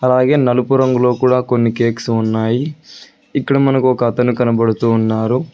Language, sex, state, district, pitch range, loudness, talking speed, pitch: Telugu, male, Telangana, Hyderabad, 115-130 Hz, -15 LUFS, 140 wpm, 125 Hz